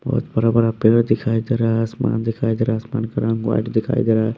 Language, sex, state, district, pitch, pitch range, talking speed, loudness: Hindi, male, Bihar, West Champaran, 115 Hz, 110-115 Hz, 290 wpm, -19 LUFS